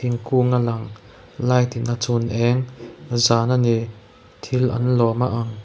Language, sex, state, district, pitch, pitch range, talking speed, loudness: Mizo, male, Mizoram, Aizawl, 120 Hz, 115-125 Hz, 170 wpm, -20 LUFS